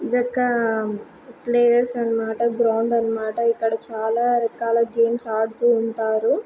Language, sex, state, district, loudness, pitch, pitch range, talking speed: Telugu, female, Andhra Pradesh, Srikakulam, -21 LUFS, 230 Hz, 225-240 Hz, 110 wpm